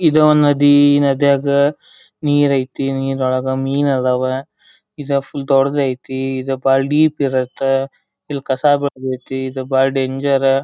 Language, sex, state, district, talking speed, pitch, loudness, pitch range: Kannada, male, Karnataka, Dharwad, 120 wpm, 135 Hz, -16 LUFS, 130-145 Hz